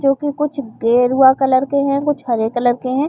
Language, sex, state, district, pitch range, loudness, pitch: Hindi, female, Chhattisgarh, Bilaspur, 245-280 Hz, -16 LUFS, 265 Hz